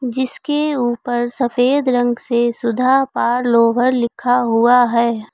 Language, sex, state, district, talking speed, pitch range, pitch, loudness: Hindi, female, Uttar Pradesh, Lucknow, 110 wpm, 235-255 Hz, 245 Hz, -16 LUFS